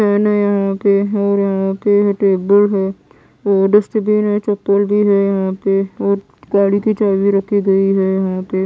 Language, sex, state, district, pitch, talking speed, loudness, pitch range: Hindi, female, Bihar, West Champaran, 200 Hz, 180 wpm, -15 LUFS, 195-205 Hz